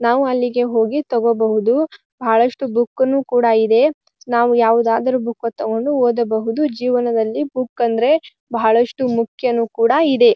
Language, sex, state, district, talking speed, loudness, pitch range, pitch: Kannada, female, Karnataka, Bijapur, 125 wpm, -17 LUFS, 230-260 Hz, 240 Hz